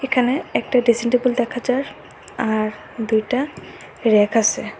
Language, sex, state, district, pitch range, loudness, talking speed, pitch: Bengali, female, Assam, Hailakandi, 220-250 Hz, -20 LUFS, 125 wpm, 245 Hz